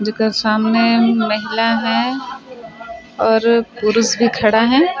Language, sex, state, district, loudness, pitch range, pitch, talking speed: Chhattisgarhi, female, Chhattisgarh, Sarguja, -15 LUFS, 215-235 Hz, 230 Hz, 130 wpm